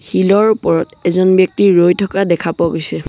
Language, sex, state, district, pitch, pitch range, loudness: Assamese, male, Assam, Sonitpur, 185 Hz, 175-195 Hz, -13 LUFS